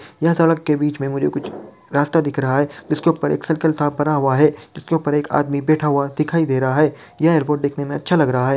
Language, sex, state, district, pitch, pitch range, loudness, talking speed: Hindi, male, Bihar, Darbhanga, 150 Hz, 140-155 Hz, -18 LUFS, 260 wpm